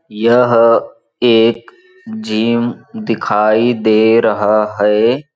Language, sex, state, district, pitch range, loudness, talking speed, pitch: Hindi, male, Chhattisgarh, Balrampur, 110-125 Hz, -13 LUFS, 80 wpm, 115 Hz